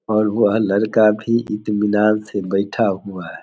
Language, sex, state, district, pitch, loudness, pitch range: Hindi, male, Bihar, Samastipur, 105 Hz, -18 LUFS, 100-110 Hz